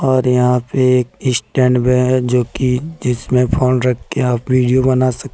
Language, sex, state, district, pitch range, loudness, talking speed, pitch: Hindi, male, Jharkhand, Deoghar, 125-130 Hz, -15 LUFS, 190 wpm, 125 Hz